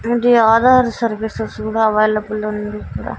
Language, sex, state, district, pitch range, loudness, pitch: Telugu, female, Andhra Pradesh, Annamaya, 215-235 Hz, -16 LUFS, 220 Hz